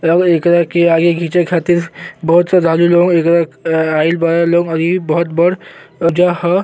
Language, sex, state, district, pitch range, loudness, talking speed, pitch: Bhojpuri, male, Uttar Pradesh, Gorakhpur, 165-175 Hz, -13 LUFS, 145 wpm, 170 Hz